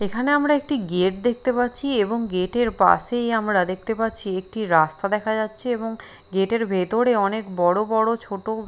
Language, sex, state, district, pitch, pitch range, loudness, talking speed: Bengali, female, Bihar, Katihar, 220 Hz, 195-240 Hz, -22 LUFS, 175 wpm